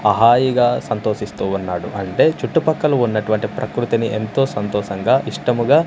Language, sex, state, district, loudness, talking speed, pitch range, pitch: Telugu, male, Andhra Pradesh, Manyam, -18 LUFS, 110 wpm, 105-130 Hz, 115 Hz